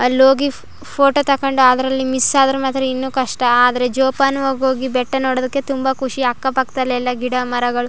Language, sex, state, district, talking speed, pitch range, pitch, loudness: Kannada, female, Karnataka, Chamarajanagar, 160 wpm, 250-270 Hz, 265 Hz, -16 LUFS